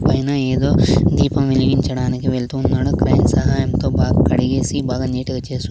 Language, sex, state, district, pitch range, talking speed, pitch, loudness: Telugu, male, Andhra Pradesh, Sri Satya Sai, 130-135 Hz, 135 wpm, 130 Hz, -17 LUFS